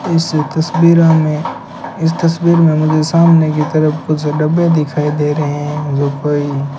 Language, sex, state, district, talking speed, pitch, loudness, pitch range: Hindi, male, Rajasthan, Bikaner, 170 wpm, 155 Hz, -13 LUFS, 150-165 Hz